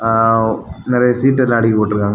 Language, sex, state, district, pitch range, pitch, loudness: Tamil, male, Tamil Nadu, Kanyakumari, 110-125 Hz, 115 Hz, -14 LUFS